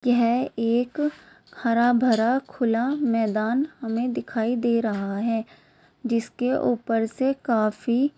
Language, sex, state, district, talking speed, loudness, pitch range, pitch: Hindi, female, Bihar, Begusarai, 110 wpm, -24 LUFS, 225-255 Hz, 235 Hz